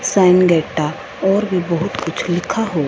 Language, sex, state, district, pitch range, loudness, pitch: Hindi, female, Punjab, Fazilka, 170-195 Hz, -17 LUFS, 180 Hz